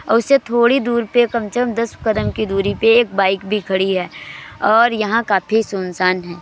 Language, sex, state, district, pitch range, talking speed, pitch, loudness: Hindi, male, Uttar Pradesh, Jyotiba Phule Nagar, 190-235 Hz, 215 wpm, 215 Hz, -16 LUFS